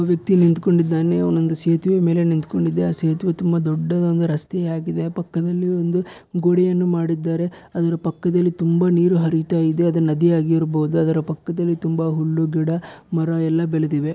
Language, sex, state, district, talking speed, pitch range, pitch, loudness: Kannada, male, Karnataka, Bellary, 150 wpm, 160-175 Hz, 165 Hz, -20 LUFS